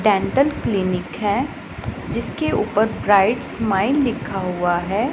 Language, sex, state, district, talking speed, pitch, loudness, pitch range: Hindi, female, Punjab, Pathankot, 115 wpm, 210 Hz, -20 LUFS, 190-240 Hz